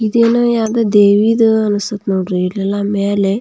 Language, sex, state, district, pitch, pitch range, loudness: Kannada, female, Karnataka, Belgaum, 205 Hz, 200-225 Hz, -14 LUFS